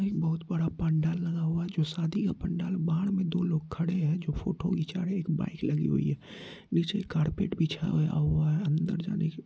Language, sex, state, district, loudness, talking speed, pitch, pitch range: Hindi, male, Bihar, Madhepura, -30 LUFS, 220 wpm, 170 Hz, 160-180 Hz